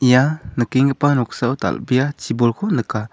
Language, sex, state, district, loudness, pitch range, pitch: Garo, male, Meghalaya, South Garo Hills, -19 LUFS, 115-140 Hz, 125 Hz